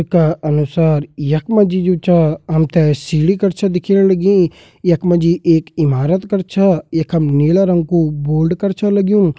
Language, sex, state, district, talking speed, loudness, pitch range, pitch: Hindi, male, Uttarakhand, Uttarkashi, 170 wpm, -14 LUFS, 155-190 Hz, 170 Hz